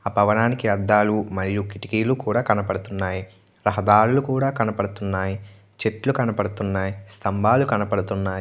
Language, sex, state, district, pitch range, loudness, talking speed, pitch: Telugu, male, Andhra Pradesh, Chittoor, 95-110 Hz, -22 LUFS, 100 wpm, 105 Hz